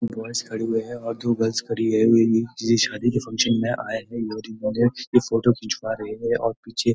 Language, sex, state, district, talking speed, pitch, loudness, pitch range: Hindi, male, Uttarakhand, Uttarkashi, 215 wpm, 115 Hz, -23 LUFS, 110-120 Hz